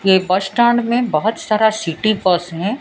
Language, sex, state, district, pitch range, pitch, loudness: Hindi, female, Odisha, Sambalpur, 185-220 Hz, 210 Hz, -16 LUFS